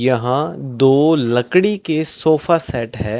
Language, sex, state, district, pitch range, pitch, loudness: Hindi, male, Rajasthan, Bikaner, 120-160 Hz, 140 Hz, -16 LUFS